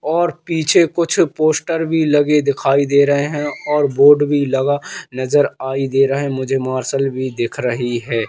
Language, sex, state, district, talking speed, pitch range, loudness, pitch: Hindi, male, Madhya Pradesh, Katni, 180 wpm, 135-150 Hz, -16 LUFS, 140 Hz